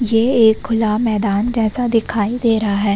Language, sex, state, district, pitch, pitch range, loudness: Hindi, female, Uttar Pradesh, Varanasi, 225 Hz, 210-230 Hz, -16 LUFS